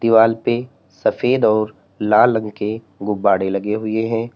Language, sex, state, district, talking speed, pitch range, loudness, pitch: Hindi, male, Uttar Pradesh, Lalitpur, 150 wpm, 105-115 Hz, -18 LUFS, 110 Hz